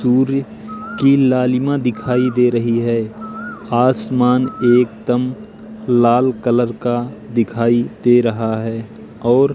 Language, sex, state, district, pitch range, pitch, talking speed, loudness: Hindi, male, Madhya Pradesh, Katni, 120-130 Hz, 125 Hz, 105 wpm, -16 LUFS